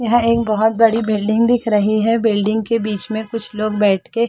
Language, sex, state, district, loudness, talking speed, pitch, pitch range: Hindi, female, Chhattisgarh, Balrampur, -17 LUFS, 240 wpm, 220 Hz, 215-230 Hz